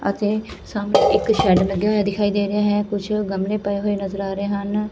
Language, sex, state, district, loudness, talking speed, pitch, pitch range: Punjabi, female, Punjab, Fazilka, -20 LUFS, 220 wpm, 205 Hz, 200-210 Hz